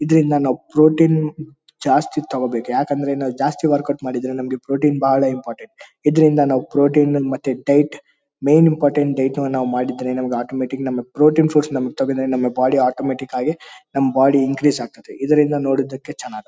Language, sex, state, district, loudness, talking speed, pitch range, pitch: Kannada, male, Karnataka, Bellary, -18 LUFS, 150 wpm, 130-150 Hz, 135 Hz